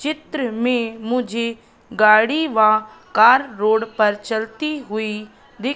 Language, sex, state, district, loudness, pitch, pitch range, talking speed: Hindi, female, Madhya Pradesh, Katni, -18 LUFS, 230 Hz, 215-255 Hz, 115 wpm